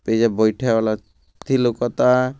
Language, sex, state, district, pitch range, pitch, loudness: Bhojpuri, male, Bihar, Gopalganj, 110-125 Hz, 115 Hz, -19 LUFS